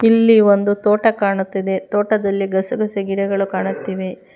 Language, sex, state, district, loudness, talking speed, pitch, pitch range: Kannada, female, Karnataka, Bangalore, -17 LUFS, 125 wpm, 200 Hz, 195-210 Hz